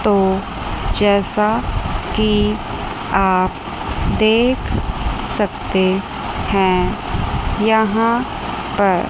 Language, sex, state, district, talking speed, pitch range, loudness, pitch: Hindi, female, Chandigarh, Chandigarh, 60 wpm, 190-220 Hz, -18 LUFS, 210 Hz